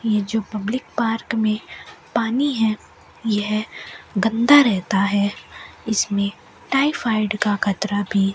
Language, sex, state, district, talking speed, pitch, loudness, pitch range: Hindi, female, Rajasthan, Bikaner, 115 wpm, 215 Hz, -20 LUFS, 205-230 Hz